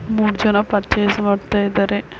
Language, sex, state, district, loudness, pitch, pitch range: Kannada, female, Karnataka, Belgaum, -18 LUFS, 205 Hz, 200-210 Hz